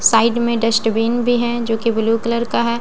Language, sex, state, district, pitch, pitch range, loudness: Hindi, female, Bihar, Katihar, 235 Hz, 225-235 Hz, -17 LUFS